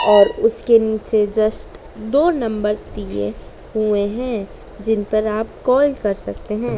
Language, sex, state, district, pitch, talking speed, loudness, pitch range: Hindi, female, Madhya Pradesh, Dhar, 215 Hz, 135 wpm, -19 LUFS, 205-230 Hz